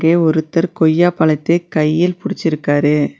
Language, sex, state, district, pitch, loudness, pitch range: Tamil, female, Tamil Nadu, Nilgiris, 160 Hz, -15 LUFS, 155-175 Hz